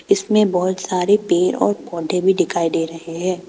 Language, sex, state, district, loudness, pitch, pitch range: Hindi, female, Arunachal Pradesh, Papum Pare, -18 LUFS, 180 Hz, 170-195 Hz